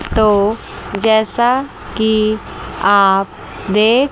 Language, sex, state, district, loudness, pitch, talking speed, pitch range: Hindi, female, Chandigarh, Chandigarh, -14 LUFS, 220 Hz, 75 wpm, 205-225 Hz